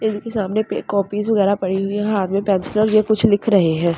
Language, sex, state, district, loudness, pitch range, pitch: Hindi, male, Delhi, New Delhi, -18 LUFS, 195-215 Hz, 205 Hz